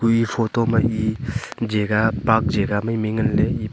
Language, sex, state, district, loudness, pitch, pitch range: Wancho, male, Arunachal Pradesh, Longding, -21 LUFS, 110 Hz, 110-115 Hz